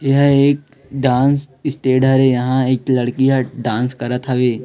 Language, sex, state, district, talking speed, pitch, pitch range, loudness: Hindi, female, Chhattisgarh, Raipur, 170 wpm, 130 Hz, 125-140 Hz, -16 LUFS